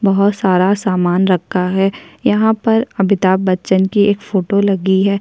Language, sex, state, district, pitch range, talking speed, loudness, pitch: Hindi, female, Chhattisgarh, Kabirdham, 185-205 Hz, 175 wpm, -14 LUFS, 195 Hz